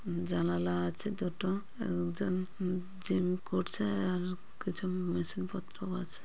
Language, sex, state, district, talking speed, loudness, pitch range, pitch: Bengali, female, West Bengal, Purulia, 135 wpm, -35 LUFS, 170-190 Hz, 180 Hz